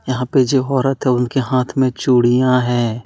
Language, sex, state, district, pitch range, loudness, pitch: Hindi, male, Jharkhand, Deoghar, 125-130 Hz, -16 LUFS, 130 Hz